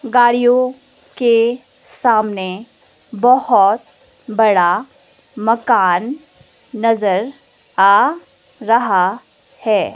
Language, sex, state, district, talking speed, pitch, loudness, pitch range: Hindi, female, Himachal Pradesh, Shimla, 60 wpm, 230 Hz, -15 LUFS, 210-255 Hz